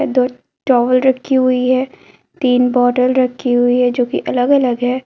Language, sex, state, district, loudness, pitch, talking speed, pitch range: Hindi, female, Jharkhand, Garhwa, -14 LUFS, 255 Hz, 180 wpm, 245-260 Hz